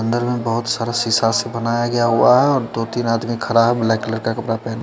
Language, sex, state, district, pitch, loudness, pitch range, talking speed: Hindi, male, Chandigarh, Chandigarh, 115 Hz, -18 LUFS, 115-120 Hz, 260 wpm